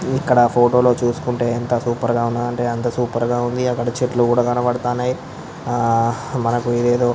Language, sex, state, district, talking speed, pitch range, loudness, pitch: Telugu, male, Andhra Pradesh, Visakhapatnam, 175 wpm, 120-125 Hz, -18 LUFS, 120 Hz